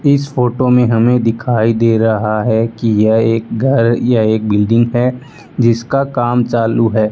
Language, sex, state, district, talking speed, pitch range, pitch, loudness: Hindi, male, Rajasthan, Bikaner, 170 wpm, 110-125 Hz, 115 Hz, -13 LUFS